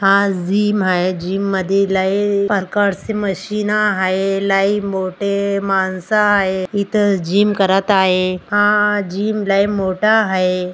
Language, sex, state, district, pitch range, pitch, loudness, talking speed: Marathi, female, Maharashtra, Aurangabad, 190-205 Hz, 195 Hz, -16 LUFS, 125 wpm